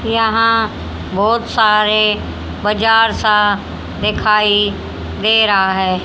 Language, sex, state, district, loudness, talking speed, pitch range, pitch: Hindi, female, Haryana, Charkhi Dadri, -14 LUFS, 90 wpm, 205-225 Hz, 215 Hz